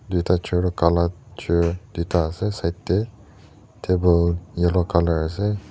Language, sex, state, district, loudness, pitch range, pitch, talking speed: Nagamese, male, Nagaland, Dimapur, -22 LUFS, 85-100 Hz, 90 Hz, 145 wpm